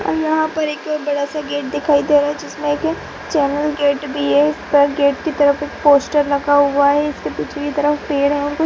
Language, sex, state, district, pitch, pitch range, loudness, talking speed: Hindi, female, Bihar, Purnia, 290 Hz, 285-300 Hz, -17 LUFS, 215 wpm